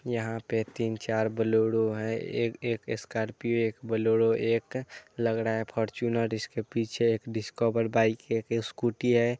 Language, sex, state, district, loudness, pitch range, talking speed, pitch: Hindi, male, Bihar, Muzaffarpur, -29 LUFS, 110-115 Hz, 165 wpm, 115 Hz